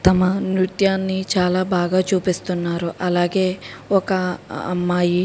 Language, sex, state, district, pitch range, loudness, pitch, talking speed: Telugu, female, Telangana, Karimnagar, 180-190 Hz, -20 LUFS, 185 Hz, 105 wpm